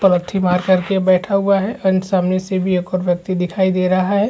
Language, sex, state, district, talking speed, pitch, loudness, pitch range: Hindi, male, Chhattisgarh, Rajnandgaon, 235 wpm, 185 Hz, -17 LUFS, 185-195 Hz